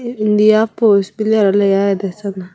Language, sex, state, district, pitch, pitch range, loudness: Chakma, female, Tripura, Unakoti, 205 Hz, 195-215 Hz, -14 LUFS